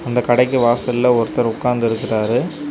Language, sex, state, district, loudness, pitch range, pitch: Tamil, male, Tamil Nadu, Kanyakumari, -17 LUFS, 115-125 Hz, 120 Hz